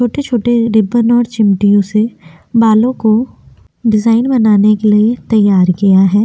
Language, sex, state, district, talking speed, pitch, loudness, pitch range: Hindi, female, Chhattisgarh, Korba, 135 wpm, 220 Hz, -11 LUFS, 205-235 Hz